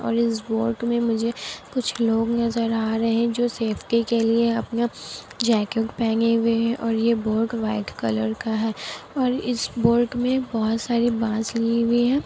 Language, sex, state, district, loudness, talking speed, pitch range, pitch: Hindi, female, Bihar, Kishanganj, -23 LUFS, 185 wpm, 225-235 Hz, 230 Hz